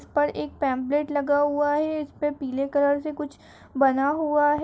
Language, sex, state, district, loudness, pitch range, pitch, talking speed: Hindi, female, Uttar Pradesh, Jyotiba Phule Nagar, -24 LUFS, 275-295 Hz, 290 Hz, 205 wpm